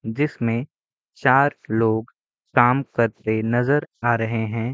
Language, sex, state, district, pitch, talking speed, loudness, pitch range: Hindi, male, Bihar, Sitamarhi, 120 Hz, 115 wpm, -21 LUFS, 115-135 Hz